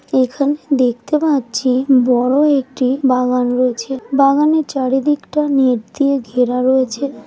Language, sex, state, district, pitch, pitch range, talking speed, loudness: Bengali, female, West Bengal, Jalpaiguri, 265 Hz, 250-280 Hz, 115 wpm, -15 LUFS